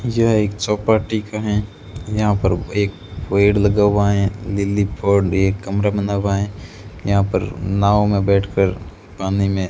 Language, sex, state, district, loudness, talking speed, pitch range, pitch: Hindi, male, Rajasthan, Bikaner, -18 LUFS, 175 wpm, 100-105 Hz, 100 Hz